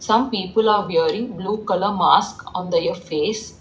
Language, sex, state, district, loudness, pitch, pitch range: English, female, Telangana, Hyderabad, -20 LUFS, 215 Hz, 200-225 Hz